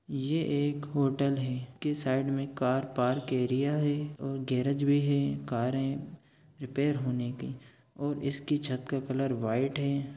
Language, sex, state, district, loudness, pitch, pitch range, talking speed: Hindi, male, Chhattisgarh, Sukma, -31 LUFS, 135 Hz, 130-145 Hz, 165 wpm